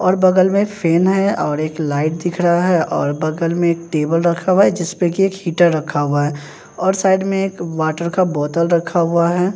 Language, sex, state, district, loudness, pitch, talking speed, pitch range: Hindi, male, Bihar, Katihar, -17 LUFS, 170 Hz, 225 wpm, 155-185 Hz